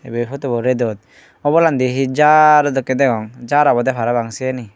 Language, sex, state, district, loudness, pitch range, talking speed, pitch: Chakma, male, Tripura, Unakoti, -15 LUFS, 120-140 Hz, 150 wpm, 130 Hz